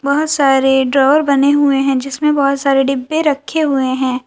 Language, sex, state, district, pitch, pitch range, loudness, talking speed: Hindi, female, Uttar Pradesh, Lalitpur, 275 Hz, 270-290 Hz, -13 LUFS, 180 wpm